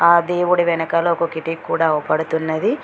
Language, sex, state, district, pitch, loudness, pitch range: Telugu, female, Telangana, Mahabubabad, 165 Hz, -18 LUFS, 160-170 Hz